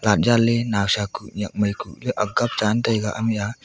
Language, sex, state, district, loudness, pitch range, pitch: Wancho, female, Arunachal Pradesh, Longding, -22 LUFS, 105-115 Hz, 105 Hz